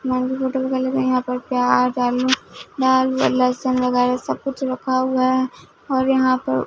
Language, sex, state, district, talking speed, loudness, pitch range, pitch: Hindi, female, Punjab, Fazilka, 190 wpm, -20 LUFS, 250-260 Hz, 255 Hz